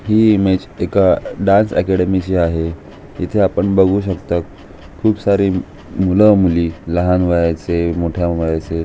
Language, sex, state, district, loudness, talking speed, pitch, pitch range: Marathi, male, Maharashtra, Aurangabad, -16 LUFS, 130 wpm, 90 Hz, 85-100 Hz